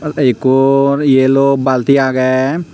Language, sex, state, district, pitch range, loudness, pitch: Chakma, male, Tripura, Unakoti, 130-140 Hz, -12 LUFS, 135 Hz